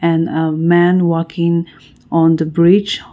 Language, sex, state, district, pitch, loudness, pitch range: English, female, Nagaland, Kohima, 165 Hz, -14 LUFS, 165-170 Hz